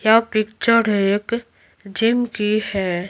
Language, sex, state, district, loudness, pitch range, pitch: Hindi, female, Bihar, Patna, -19 LUFS, 200-230 Hz, 215 Hz